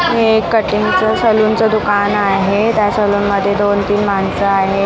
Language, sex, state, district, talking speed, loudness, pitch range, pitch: Marathi, female, Maharashtra, Mumbai Suburban, 150 wpm, -13 LUFS, 200-220 Hz, 205 Hz